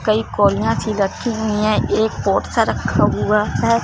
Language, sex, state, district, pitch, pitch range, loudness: Hindi, female, Punjab, Fazilka, 215 Hz, 210-220 Hz, -18 LUFS